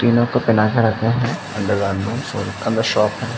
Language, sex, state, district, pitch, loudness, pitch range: Hindi, male, Uttar Pradesh, Jalaun, 115 Hz, -19 LUFS, 105-120 Hz